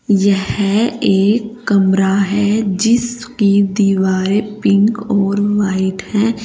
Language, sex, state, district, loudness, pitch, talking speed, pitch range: Hindi, female, Uttar Pradesh, Saharanpur, -15 LUFS, 205 Hz, 95 wpm, 195-220 Hz